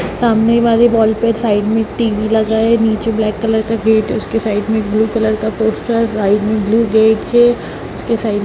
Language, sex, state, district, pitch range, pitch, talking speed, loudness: Hindi, female, Bihar, Darbhanga, 215-230 Hz, 220 Hz, 220 wpm, -14 LUFS